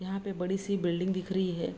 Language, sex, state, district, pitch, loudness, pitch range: Hindi, female, Bihar, Araria, 190 Hz, -32 LUFS, 180-195 Hz